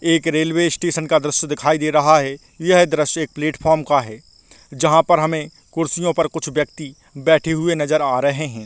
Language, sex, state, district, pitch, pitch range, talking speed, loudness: Hindi, male, Chhattisgarh, Balrampur, 155 Hz, 150-165 Hz, 210 wpm, -18 LUFS